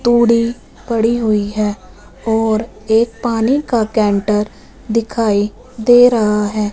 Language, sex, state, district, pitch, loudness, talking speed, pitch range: Hindi, female, Punjab, Fazilka, 225 Hz, -15 LUFS, 115 wpm, 210-235 Hz